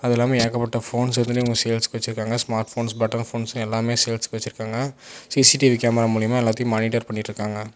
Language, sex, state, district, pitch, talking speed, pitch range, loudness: Tamil, male, Tamil Nadu, Namakkal, 115 Hz, 160 wpm, 110-120 Hz, -21 LUFS